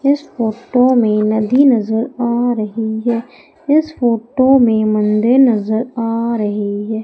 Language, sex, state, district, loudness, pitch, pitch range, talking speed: Hindi, female, Madhya Pradesh, Umaria, -15 LUFS, 230 Hz, 220-250 Hz, 135 wpm